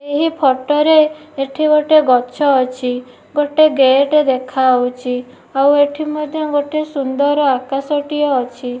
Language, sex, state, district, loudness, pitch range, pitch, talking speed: Odia, female, Odisha, Nuapada, -15 LUFS, 260-300 Hz, 285 Hz, 130 wpm